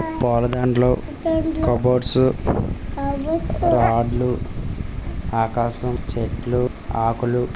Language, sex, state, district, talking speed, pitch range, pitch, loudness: Telugu, male, Andhra Pradesh, Visakhapatnam, 65 wpm, 115-125 Hz, 120 Hz, -21 LUFS